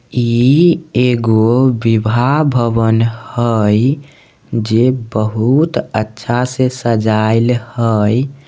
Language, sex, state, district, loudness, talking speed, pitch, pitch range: Maithili, male, Bihar, Samastipur, -14 LUFS, 80 wpm, 120 Hz, 115-125 Hz